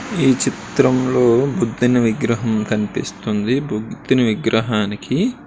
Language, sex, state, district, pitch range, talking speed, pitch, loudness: Telugu, male, Andhra Pradesh, Srikakulam, 110-130 Hz, 90 wpm, 120 Hz, -18 LUFS